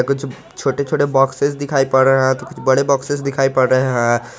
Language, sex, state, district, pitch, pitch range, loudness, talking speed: Hindi, male, Jharkhand, Garhwa, 135 Hz, 130-140 Hz, -16 LUFS, 175 wpm